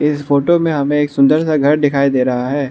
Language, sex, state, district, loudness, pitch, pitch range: Hindi, male, Arunachal Pradesh, Lower Dibang Valley, -14 LUFS, 145 Hz, 140-150 Hz